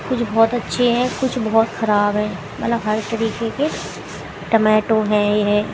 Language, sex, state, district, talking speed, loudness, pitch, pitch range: Hindi, female, Haryana, Jhajjar, 155 wpm, -18 LUFS, 225 Hz, 210-235 Hz